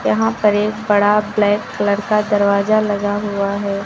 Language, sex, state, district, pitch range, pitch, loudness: Hindi, female, Uttar Pradesh, Lucknow, 200-210 Hz, 205 Hz, -16 LUFS